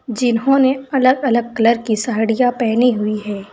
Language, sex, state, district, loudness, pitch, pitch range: Hindi, female, Uttar Pradesh, Saharanpur, -16 LUFS, 235 Hz, 225-255 Hz